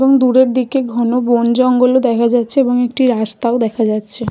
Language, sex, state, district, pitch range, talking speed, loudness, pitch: Bengali, female, West Bengal, Malda, 235-255 Hz, 210 wpm, -14 LUFS, 245 Hz